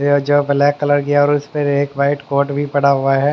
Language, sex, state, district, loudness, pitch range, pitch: Hindi, male, Haryana, Jhajjar, -16 LUFS, 140-145 Hz, 145 Hz